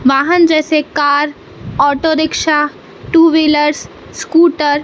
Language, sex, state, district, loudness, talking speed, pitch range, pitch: Hindi, male, Madhya Pradesh, Katni, -12 LUFS, 110 wpm, 290-320 Hz, 305 Hz